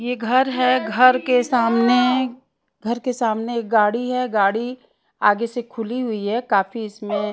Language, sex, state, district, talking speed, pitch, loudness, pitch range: Hindi, female, Punjab, Pathankot, 170 wpm, 240 Hz, -20 LUFS, 220-250 Hz